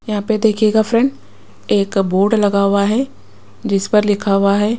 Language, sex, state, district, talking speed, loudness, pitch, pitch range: Hindi, female, Maharashtra, Washim, 175 wpm, -15 LUFS, 210 Hz, 200-220 Hz